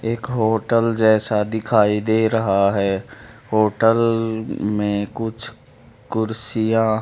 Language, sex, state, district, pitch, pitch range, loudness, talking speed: Hindi, male, Haryana, Charkhi Dadri, 110 Hz, 105-115 Hz, -19 LUFS, 95 wpm